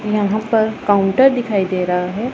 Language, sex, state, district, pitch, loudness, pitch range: Hindi, female, Punjab, Pathankot, 210 Hz, -16 LUFS, 195-220 Hz